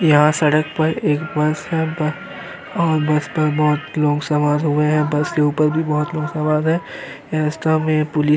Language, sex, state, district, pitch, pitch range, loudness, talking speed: Hindi, male, Uttar Pradesh, Jyotiba Phule Nagar, 155 Hz, 150-155 Hz, -18 LUFS, 185 wpm